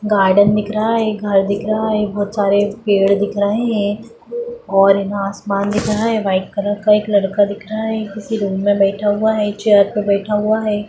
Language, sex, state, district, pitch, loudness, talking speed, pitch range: Hindi, female, Bihar, Jamui, 205 Hz, -16 LUFS, 225 wpm, 200-215 Hz